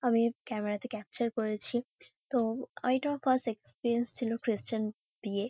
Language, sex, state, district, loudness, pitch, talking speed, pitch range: Bengali, female, West Bengal, Kolkata, -33 LUFS, 235 Hz, 140 wpm, 220-250 Hz